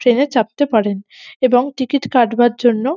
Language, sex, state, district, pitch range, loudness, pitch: Bengali, female, West Bengal, North 24 Parganas, 230-270 Hz, -16 LUFS, 245 Hz